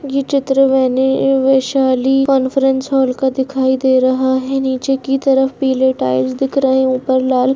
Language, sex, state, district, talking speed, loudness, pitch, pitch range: Hindi, female, Bihar, Muzaffarpur, 175 wpm, -14 LUFS, 265 Hz, 260-270 Hz